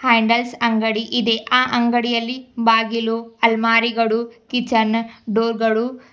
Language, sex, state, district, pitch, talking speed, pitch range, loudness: Kannada, female, Karnataka, Bidar, 230 Hz, 100 wpm, 225-235 Hz, -18 LUFS